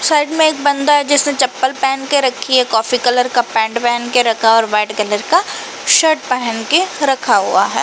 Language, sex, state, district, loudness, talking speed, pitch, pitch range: Hindi, female, Uttar Pradesh, Jalaun, -14 LUFS, 220 wpm, 260 Hz, 235-290 Hz